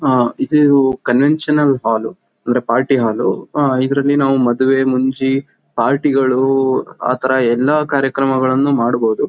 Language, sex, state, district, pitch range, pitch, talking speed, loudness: Kannada, male, Karnataka, Mysore, 125-140 Hz, 130 Hz, 125 wpm, -15 LUFS